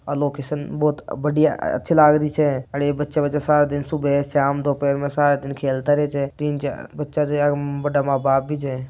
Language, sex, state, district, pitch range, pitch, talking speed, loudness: Marwari, male, Rajasthan, Nagaur, 140-150 Hz, 145 Hz, 210 wpm, -21 LUFS